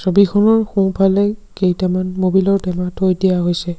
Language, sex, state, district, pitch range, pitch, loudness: Assamese, male, Assam, Sonitpur, 185-195 Hz, 190 Hz, -16 LUFS